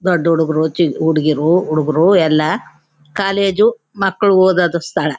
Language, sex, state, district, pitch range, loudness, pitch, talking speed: Kannada, female, Karnataka, Chamarajanagar, 155-190 Hz, -15 LUFS, 165 Hz, 105 wpm